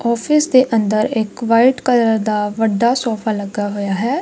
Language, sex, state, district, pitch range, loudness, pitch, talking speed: Punjabi, female, Punjab, Kapurthala, 215-245 Hz, -16 LUFS, 225 Hz, 170 wpm